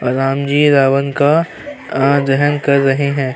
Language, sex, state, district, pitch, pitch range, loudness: Hindi, male, Uttar Pradesh, Hamirpur, 140 Hz, 135-145 Hz, -14 LUFS